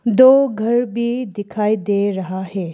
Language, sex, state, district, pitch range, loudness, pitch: Hindi, female, Arunachal Pradesh, Lower Dibang Valley, 200-240 Hz, -17 LUFS, 220 Hz